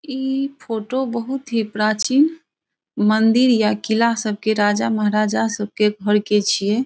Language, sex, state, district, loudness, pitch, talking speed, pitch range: Maithili, female, Bihar, Saharsa, -19 LUFS, 220 Hz, 130 wpm, 210-255 Hz